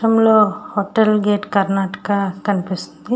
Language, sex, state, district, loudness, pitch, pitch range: Telugu, female, Andhra Pradesh, Srikakulam, -17 LUFS, 205 Hz, 195-215 Hz